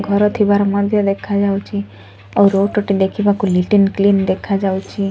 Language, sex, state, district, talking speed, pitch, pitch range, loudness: Odia, female, Odisha, Sambalpur, 115 wpm, 200 Hz, 190-205 Hz, -16 LUFS